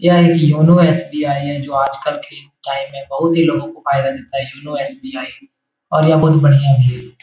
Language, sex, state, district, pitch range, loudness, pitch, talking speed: Hindi, male, Bihar, Jahanabad, 135-165 Hz, -15 LUFS, 145 Hz, 205 wpm